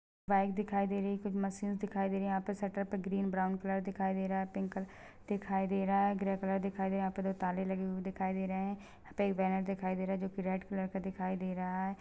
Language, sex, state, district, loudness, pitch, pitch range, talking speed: Hindi, female, Chhattisgarh, Balrampur, -36 LUFS, 195 Hz, 190-195 Hz, 285 wpm